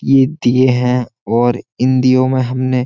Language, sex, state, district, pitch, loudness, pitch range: Hindi, male, Uttar Pradesh, Jyotiba Phule Nagar, 130 Hz, -14 LUFS, 125-130 Hz